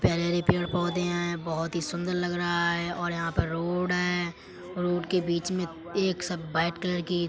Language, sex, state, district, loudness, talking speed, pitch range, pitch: Hindi, male, Uttar Pradesh, Etah, -28 LUFS, 200 wpm, 170-180 Hz, 175 Hz